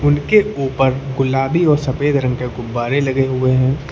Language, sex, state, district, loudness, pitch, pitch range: Hindi, male, Uttar Pradesh, Lucknow, -16 LUFS, 135 Hz, 130-145 Hz